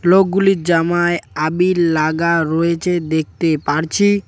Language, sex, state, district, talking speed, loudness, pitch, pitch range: Bengali, male, West Bengal, Cooch Behar, 100 wpm, -16 LUFS, 170 Hz, 160-180 Hz